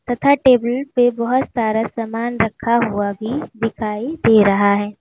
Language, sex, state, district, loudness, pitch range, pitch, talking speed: Hindi, female, Uttar Pradesh, Lalitpur, -17 LUFS, 220-245 Hz, 230 Hz, 155 wpm